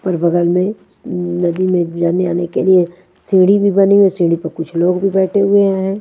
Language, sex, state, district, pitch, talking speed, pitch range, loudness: Hindi, female, Maharashtra, Washim, 180 Hz, 210 wpm, 175-195 Hz, -14 LUFS